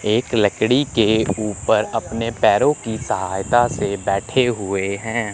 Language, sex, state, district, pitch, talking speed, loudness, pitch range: Hindi, male, Chandigarh, Chandigarh, 110 Hz, 135 wpm, -19 LUFS, 100-120 Hz